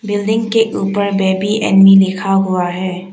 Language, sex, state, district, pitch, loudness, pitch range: Hindi, female, Arunachal Pradesh, Papum Pare, 195 Hz, -13 LUFS, 190-205 Hz